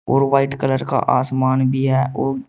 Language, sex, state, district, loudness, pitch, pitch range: Hindi, male, Uttar Pradesh, Saharanpur, -18 LUFS, 135 Hz, 130-135 Hz